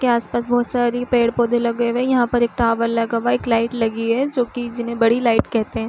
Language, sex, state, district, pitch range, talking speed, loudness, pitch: Hindi, female, Uttar Pradesh, Varanasi, 230-245 Hz, 265 wpm, -19 LUFS, 235 Hz